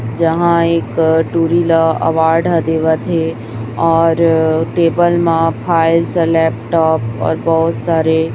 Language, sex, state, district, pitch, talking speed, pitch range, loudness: Hindi, female, Chhattisgarh, Raipur, 165 Hz, 120 wpm, 160-165 Hz, -13 LUFS